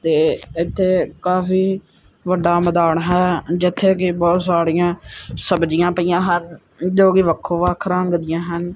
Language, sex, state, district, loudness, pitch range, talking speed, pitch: Punjabi, male, Punjab, Kapurthala, -17 LUFS, 170-180 Hz, 135 wpm, 175 Hz